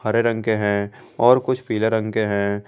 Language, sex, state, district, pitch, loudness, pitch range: Hindi, male, Jharkhand, Garhwa, 110 Hz, -20 LUFS, 105-115 Hz